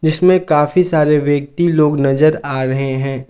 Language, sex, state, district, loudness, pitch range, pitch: Hindi, male, Jharkhand, Garhwa, -14 LUFS, 135-155 Hz, 150 Hz